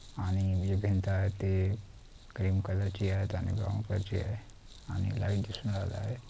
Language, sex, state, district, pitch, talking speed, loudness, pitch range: Marathi, male, Maharashtra, Pune, 100 Hz, 180 wpm, -33 LUFS, 95-105 Hz